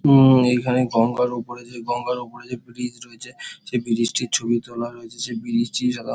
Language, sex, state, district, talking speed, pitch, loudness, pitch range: Bengali, male, West Bengal, Dakshin Dinajpur, 185 wpm, 120 Hz, -21 LUFS, 120-125 Hz